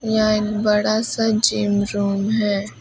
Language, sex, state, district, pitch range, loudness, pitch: Hindi, female, West Bengal, Alipurduar, 205-220 Hz, -19 LUFS, 210 Hz